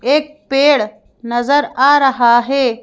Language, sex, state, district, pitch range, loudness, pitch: Hindi, female, Madhya Pradesh, Bhopal, 240-285 Hz, -13 LUFS, 270 Hz